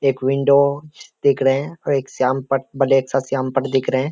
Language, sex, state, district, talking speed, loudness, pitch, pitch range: Hindi, male, Bihar, Kishanganj, 160 wpm, -19 LUFS, 135 Hz, 135-140 Hz